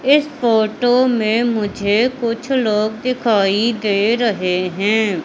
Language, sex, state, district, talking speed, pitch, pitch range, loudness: Hindi, female, Madhya Pradesh, Katni, 115 wpm, 220 Hz, 205-245 Hz, -17 LUFS